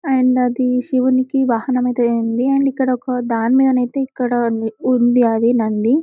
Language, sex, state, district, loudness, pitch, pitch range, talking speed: Telugu, female, Telangana, Karimnagar, -16 LUFS, 250 Hz, 235-260 Hz, 150 wpm